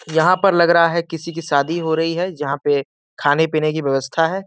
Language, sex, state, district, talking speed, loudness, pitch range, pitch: Hindi, male, Uttar Pradesh, Varanasi, 240 wpm, -18 LUFS, 150-170 Hz, 160 Hz